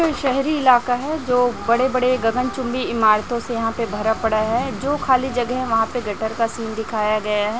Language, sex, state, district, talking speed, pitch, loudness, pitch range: Hindi, female, Chhattisgarh, Raipur, 205 wpm, 240 Hz, -20 LUFS, 225-255 Hz